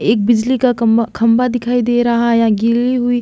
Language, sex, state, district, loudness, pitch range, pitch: Hindi, female, Chhattisgarh, Sukma, -14 LUFS, 230-245 Hz, 235 Hz